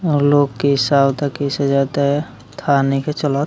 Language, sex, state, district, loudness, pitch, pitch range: Bhojpuri, male, Bihar, Muzaffarpur, -17 LUFS, 140 Hz, 135-145 Hz